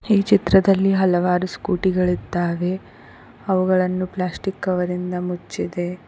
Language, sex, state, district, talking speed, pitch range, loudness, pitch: Kannada, female, Karnataka, Koppal, 100 wpm, 180-190 Hz, -20 LUFS, 185 Hz